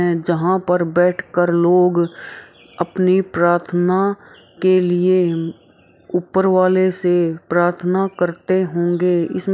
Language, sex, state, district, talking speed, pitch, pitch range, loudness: Hindi, female, Bihar, Araria, 105 wpm, 180 Hz, 175-185 Hz, -17 LUFS